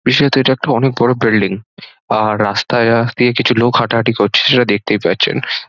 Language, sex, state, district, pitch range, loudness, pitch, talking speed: Bengali, male, West Bengal, Dakshin Dinajpur, 110-125 Hz, -13 LUFS, 120 Hz, 190 wpm